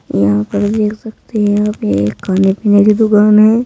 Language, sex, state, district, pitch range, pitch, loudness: Hindi, female, Uttar Pradesh, Saharanpur, 190-215 Hz, 210 Hz, -12 LUFS